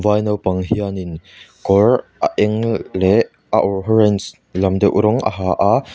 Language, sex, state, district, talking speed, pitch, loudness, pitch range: Mizo, male, Mizoram, Aizawl, 150 wpm, 100 Hz, -17 LUFS, 95-105 Hz